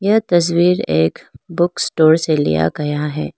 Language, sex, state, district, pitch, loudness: Hindi, female, Arunachal Pradesh, Lower Dibang Valley, 155 Hz, -16 LUFS